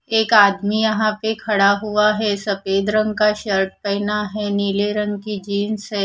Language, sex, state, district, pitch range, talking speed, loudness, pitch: Hindi, female, Odisha, Khordha, 200-215 Hz, 180 wpm, -19 LUFS, 210 Hz